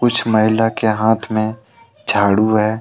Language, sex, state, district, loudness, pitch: Hindi, male, Jharkhand, Deoghar, -16 LUFS, 110 Hz